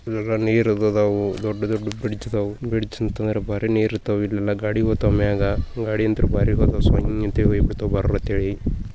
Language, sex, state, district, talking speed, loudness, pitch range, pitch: Kannada, male, Karnataka, Bijapur, 165 wpm, -22 LUFS, 100-110 Hz, 105 Hz